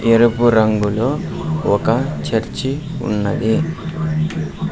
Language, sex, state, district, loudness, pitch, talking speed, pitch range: Telugu, male, Andhra Pradesh, Sri Satya Sai, -18 LUFS, 140 Hz, 65 wpm, 110-160 Hz